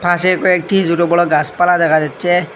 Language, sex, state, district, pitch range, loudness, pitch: Bengali, male, Assam, Hailakandi, 165-180 Hz, -13 LUFS, 175 Hz